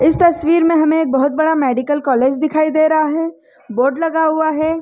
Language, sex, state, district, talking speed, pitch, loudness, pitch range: Hindi, female, Chhattisgarh, Rajnandgaon, 200 wpm, 310 Hz, -15 LUFS, 285-320 Hz